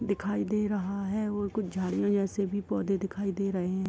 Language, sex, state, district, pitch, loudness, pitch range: Hindi, female, Uttar Pradesh, Etah, 200 Hz, -30 LUFS, 195-205 Hz